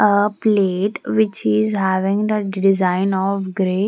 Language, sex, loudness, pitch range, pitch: English, female, -18 LUFS, 190-205 Hz, 195 Hz